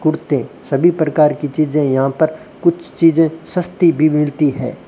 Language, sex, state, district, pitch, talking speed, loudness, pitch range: Hindi, male, Rajasthan, Bikaner, 155 Hz, 160 wpm, -16 LUFS, 145-165 Hz